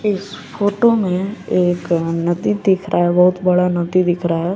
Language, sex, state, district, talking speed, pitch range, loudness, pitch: Hindi, male, Bihar, West Champaran, 185 wpm, 175-200 Hz, -17 LUFS, 180 Hz